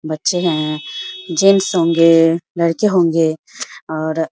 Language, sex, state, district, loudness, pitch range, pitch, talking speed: Hindi, female, Bihar, Samastipur, -15 LUFS, 160-175 Hz, 165 Hz, 110 wpm